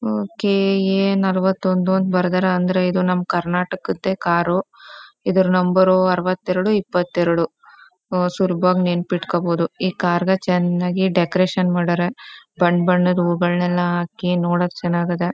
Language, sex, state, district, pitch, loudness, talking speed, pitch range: Kannada, female, Karnataka, Chamarajanagar, 180 Hz, -19 LUFS, 110 wpm, 175-185 Hz